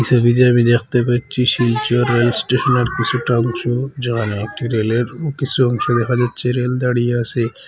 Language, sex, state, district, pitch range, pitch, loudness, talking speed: Bengali, male, Assam, Hailakandi, 120-125 Hz, 120 Hz, -17 LUFS, 165 wpm